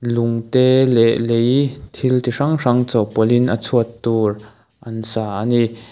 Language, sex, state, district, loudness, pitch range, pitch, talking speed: Mizo, male, Mizoram, Aizawl, -17 LUFS, 115-125 Hz, 115 Hz, 160 wpm